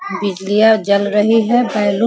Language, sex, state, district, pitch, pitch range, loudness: Hindi, female, Bihar, Sitamarhi, 210 Hz, 200-220 Hz, -14 LUFS